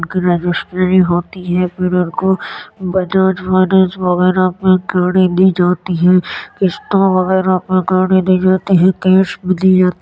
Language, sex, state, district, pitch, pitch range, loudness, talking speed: Hindi, male, Uttar Pradesh, Jyotiba Phule Nagar, 185 Hz, 180-190 Hz, -13 LUFS, 155 wpm